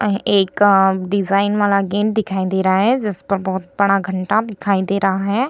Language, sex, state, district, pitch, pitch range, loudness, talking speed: Hindi, female, Bihar, Vaishali, 200 Hz, 190-205 Hz, -17 LUFS, 195 wpm